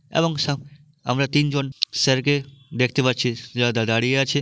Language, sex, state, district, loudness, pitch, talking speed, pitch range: Bengali, male, West Bengal, Malda, -21 LUFS, 135 Hz, 150 wpm, 125-145 Hz